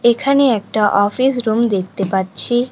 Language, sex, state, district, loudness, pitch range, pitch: Bengali, female, West Bengal, Cooch Behar, -15 LUFS, 200-250 Hz, 225 Hz